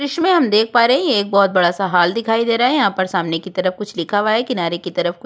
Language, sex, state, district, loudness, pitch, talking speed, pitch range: Hindi, female, Chhattisgarh, Korba, -16 LUFS, 200 Hz, 340 wpm, 180-235 Hz